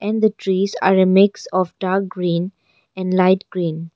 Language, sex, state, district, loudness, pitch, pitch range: English, female, Arunachal Pradesh, Longding, -18 LUFS, 185 Hz, 180-195 Hz